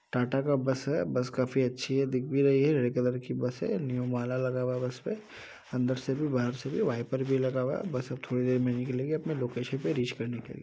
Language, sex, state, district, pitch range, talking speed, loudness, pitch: Hindi, male, Bihar, Muzaffarpur, 125-135 Hz, 265 wpm, -30 LUFS, 130 Hz